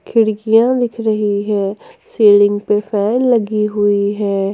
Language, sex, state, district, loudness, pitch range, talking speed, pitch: Hindi, female, Jharkhand, Ranchi, -15 LUFS, 205-225 Hz, 130 wpm, 210 Hz